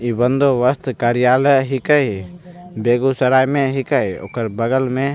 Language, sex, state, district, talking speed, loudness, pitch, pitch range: Maithili, male, Bihar, Begusarai, 130 wpm, -17 LUFS, 130 Hz, 120-140 Hz